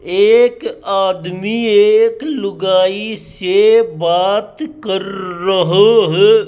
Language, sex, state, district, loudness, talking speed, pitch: Hindi, male, Rajasthan, Jaipur, -13 LUFS, 85 wpm, 225 Hz